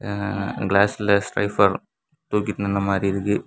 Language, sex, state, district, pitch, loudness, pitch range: Tamil, male, Tamil Nadu, Kanyakumari, 100 Hz, -22 LUFS, 100-105 Hz